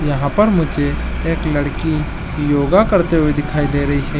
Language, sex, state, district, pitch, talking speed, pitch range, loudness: Chhattisgarhi, male, Chhattisgarh, Jashpur, 150 Hz, 170 wpm, 145-165 Hz, -17 LUFS